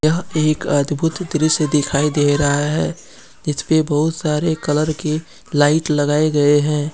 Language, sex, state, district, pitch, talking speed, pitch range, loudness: Hindi, male, Jharkhand, Deoghar, 150 Hz, 155 wpm, 145-155 Hz, -17 LUFS